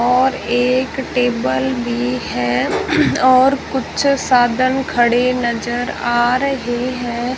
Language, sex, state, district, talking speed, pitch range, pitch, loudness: Hindi, female, Rajasthan, Jaisalmer, 105 wpm, 240-260 Hz, 245 Hz, -16 LUFS